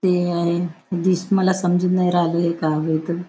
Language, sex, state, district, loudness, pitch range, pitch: Marathi, female, Maharashtra, Nagpur, -20 LUFS, 170-180 Hz, 175 Hz